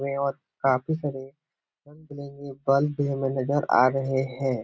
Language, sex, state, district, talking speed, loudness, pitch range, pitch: Hindi, male, Bihar, Supaul, 170 wpm, -25 LUFS, 135-145 Hz, 140 Hz